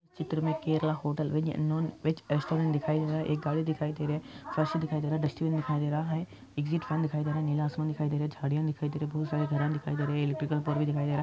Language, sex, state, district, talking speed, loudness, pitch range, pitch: Hindi, male, Andhra Pradesh, Anantapur, 285 wpm, -31 LUFS, 150-155 Hz, 155 Hz